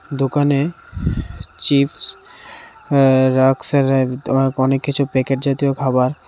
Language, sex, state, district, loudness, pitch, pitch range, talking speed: Bengali, male, Tripura, West Tripura, -17 LUFS, 135 Hz, 130-145 Hz, 75 wpm